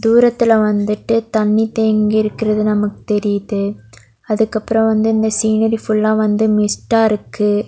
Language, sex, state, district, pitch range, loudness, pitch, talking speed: Tamil, female, Tamil Nadu, Nilgiris, 210-220 Hz, -15 LUFS, 215 Hz, 125 wpm